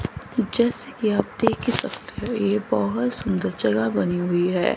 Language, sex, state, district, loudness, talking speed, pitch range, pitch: Hindi, female, Chandigarh, Chandigarh, -23 LUFS, 175 wpm, 170-235 Hz, 200 Hz